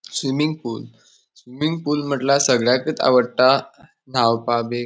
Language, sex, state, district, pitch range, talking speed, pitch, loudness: Konkani, male, Goa, North and South Goa, 120-145 Hz, 110 wpm, 130 Hz, -19 LUFS